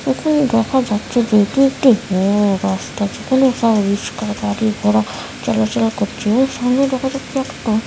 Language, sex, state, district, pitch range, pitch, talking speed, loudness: Bengali, male, West Bengal, Kolkata, 205-260 Hz, 225 Hz, 135 wpm, -17 LUFS